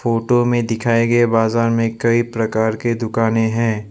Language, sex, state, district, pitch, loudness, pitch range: Hindi, male, Assam, Sonitpur, 115 Hz, -17 LUFS, 115-120 Hz